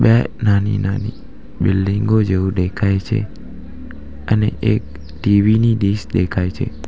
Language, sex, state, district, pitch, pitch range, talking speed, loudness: Gujarati, male, Gujarat, Valsad, 100 Hz, 90-110 Hz, 120 wpm, -17 LUFS